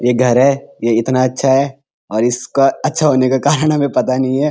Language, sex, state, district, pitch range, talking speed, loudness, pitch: Hindi, male, Uttarakhand, Uttarkashi, 125-140 Hz, 225 wpm, -14 LUFS, 130 Hz